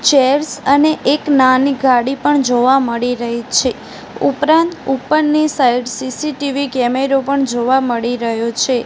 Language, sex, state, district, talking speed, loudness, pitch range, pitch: Gujarati, female, Gujarat, Gandhinagar, 135 wpm, -15 LUFS, 245-285 Hz, 265 Hz